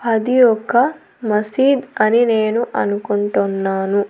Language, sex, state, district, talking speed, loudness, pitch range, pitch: Telugu, female, Andhra Pradesh, Annamaya, 90 wpm, -17 LUFS, 205-240 Hz, 220 Hz